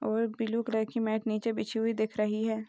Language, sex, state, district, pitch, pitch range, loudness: Hindi, female, Rajasthan, Nagaur, 220 Hz, 220-225 Hz, -31 LUFS